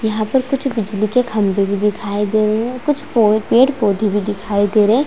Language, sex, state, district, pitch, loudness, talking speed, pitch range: Hindi, female, Chhattisgarh, Raigarh, 215 Hz, -16 LUFS, 235 wpm, 205-250 Hz